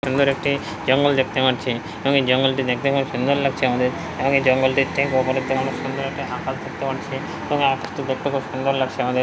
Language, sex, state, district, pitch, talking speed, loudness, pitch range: Bengali, male, West Bengal, Jalpaiguri, 135 Hz, 195 wpm, -21 LUFS, 130-140 Hz